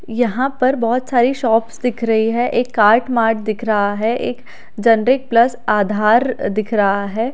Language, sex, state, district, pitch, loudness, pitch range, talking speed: Hindi, female, Delhi, New Delhi, 230 Hz, -16 LUFS, 215-245 Hz, 170 wpm